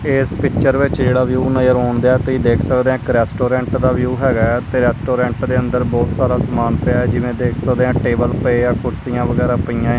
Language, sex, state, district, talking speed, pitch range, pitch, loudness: Punjabi, male, Punjab, Kapurthala, 200 wpm, 120-130 Hz, 125 Hz, -16 LUFS